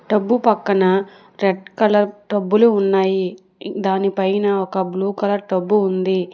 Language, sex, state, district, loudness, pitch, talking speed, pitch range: Telugu, female, Telangana, Hyderabad, -18 LUFS, 195 Hz, 125 wpm, 190-205 Hz